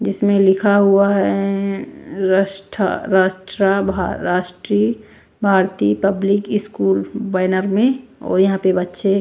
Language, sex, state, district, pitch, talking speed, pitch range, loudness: Hindi, female, Bihar, West Champaran, 195 Hz, 90 wpm, 185-200 Hz, -17 LUFS